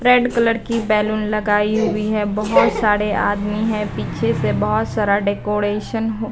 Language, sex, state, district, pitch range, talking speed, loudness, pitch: Hindi, female, Bihar, Katihar, 210-220 Hz, 160 wpm, -18 LUFS, 215 Hz